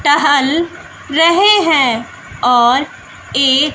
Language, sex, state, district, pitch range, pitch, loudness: Hindi, female, Bihar, West Champaran, 265-335 Hz, 290 Hz, -12 LUFS